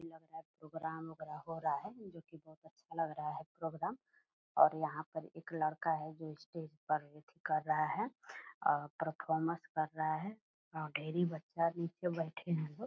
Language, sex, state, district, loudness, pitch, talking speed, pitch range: Hindi, female, Bihar, Purnia, -39 LUFS, 160 Hz, 195 wpm, 155-165 Hz